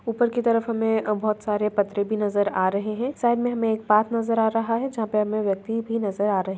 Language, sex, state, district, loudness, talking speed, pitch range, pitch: Hindi, female, Bihar, Saharsa, -24 LUFS, 275 wpm, 210-230 Hz, 220 Hz